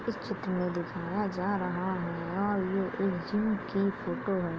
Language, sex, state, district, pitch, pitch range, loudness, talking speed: Hindi, male, Uttar Pradesh, Jalaun, 190 Hz, 180-200 Hz, -32 LUFS, 185 wpm